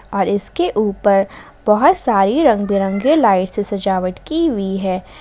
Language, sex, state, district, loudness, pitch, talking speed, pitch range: Hindi, female, Jharkhand, Ranchi, -16 LUFS, 205 Hz, 150 wpm, 195-250 Hz